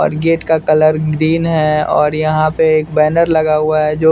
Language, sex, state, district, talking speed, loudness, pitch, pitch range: Hindi, male, Bihar, West Champaran, 235 wpm, -13 LUFS, 155 Hz, 155-160 Hz